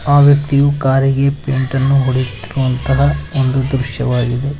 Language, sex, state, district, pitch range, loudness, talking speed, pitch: Kannada, male, Karnataka, Koppal, 130-140 Hz, -15 LUFS, 105 wpm, 135 Hz